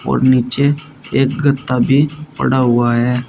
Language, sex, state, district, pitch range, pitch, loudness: Hindi, male, Uttar Pradesh, Shamli, 125-140 Hz, 130 Hz, -15 LUFS